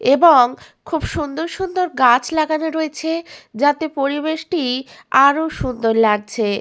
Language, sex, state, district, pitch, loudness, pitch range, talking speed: Bengali, female, West Bengal, Malda, 300 Hz, -18 LUFS, 255-320 Hz, 110 wpm